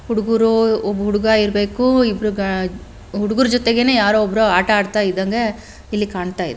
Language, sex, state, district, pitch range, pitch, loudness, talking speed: Kannada, female, Karnataka, Bellary, 205-225 Hz, 210 Hz, -17 LUFS, 135 wpm